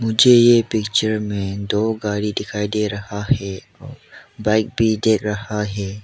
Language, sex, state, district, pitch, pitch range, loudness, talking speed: Hindi, male, Arunachal Pradesh, Lower Dibang Valley, 105 Hz, 105-110 Hz, -19 LUFS, 150 wpm